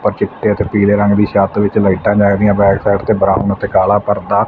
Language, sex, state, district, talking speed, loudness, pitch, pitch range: Punjabi, male, Punjab, Fazilka, 225 wpm, -13 LUFS, 100 Hz, 100-105 Hz